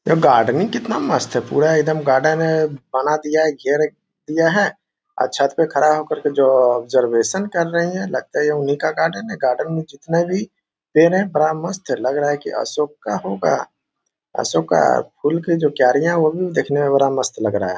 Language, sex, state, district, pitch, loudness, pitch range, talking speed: Hindi, male, Bihar, Bhagalpur, 155 Hz, -18 LUFS, 140-170 Hz, 205 wpm